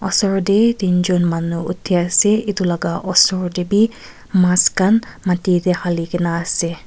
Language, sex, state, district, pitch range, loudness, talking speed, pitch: Nagamese, female, Nagaland, Kohima, 175-195 Hz, -17 LUFS, 175 wpm, 180 Hz